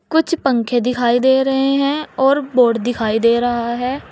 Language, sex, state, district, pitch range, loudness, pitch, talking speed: Hindi, female, Uttar Pradesh, Saharanpur, 240-275 Hz, -16 LUFS, 255 Hz, 175 wpm